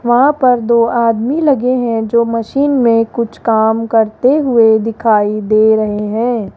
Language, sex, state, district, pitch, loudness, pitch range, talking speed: Hindi, female, Rajasthan, Jaipur, 230 Hz, -12 LUFS, 220-245 Hz, 155 wpm